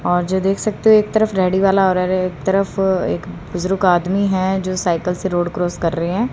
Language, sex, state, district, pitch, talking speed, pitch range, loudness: Hindi, female, Haryana, Rohtak, 185 Hz, 220 wpm, 180-195 Hz, -17 LUFS